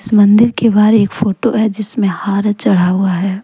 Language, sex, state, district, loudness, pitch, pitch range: Hindi, female, Jharkhand, Deoghar, -13 LUFS, 205 Hz, 195-220 Hz